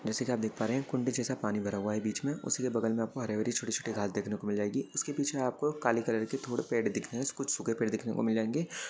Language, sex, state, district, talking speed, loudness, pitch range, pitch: Hindi, male, Maharashtra, Sindhudurg, 275 wpm, -33 LUFS, 110-135 Hz, 120 Hz